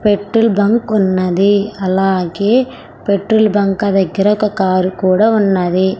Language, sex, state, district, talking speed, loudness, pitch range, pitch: Telugu, female, Andhra Pradesh, Sri Satya Sai, 110 wpm, -14 LUFS, 190-210 Hz, 200 Hz